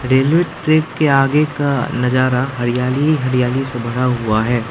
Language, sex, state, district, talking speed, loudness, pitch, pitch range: Hindi, male, Arunachal Pradesh, Lower Dibang Valley, 165 wpm, -16 LUFS, 130 Hz, 125-145 Hz